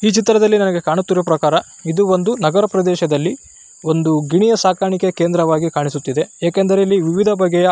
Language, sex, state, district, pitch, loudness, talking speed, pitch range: Kannada, male, Karnataka, Raichur, 185 Hz, -16 LUFS, 155 wpm, 160-195 Hz